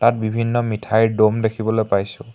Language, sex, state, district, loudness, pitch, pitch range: Assamese, male, Assam, Hailakandi, -19 LUFS, 110 Hz, 110-115 Hz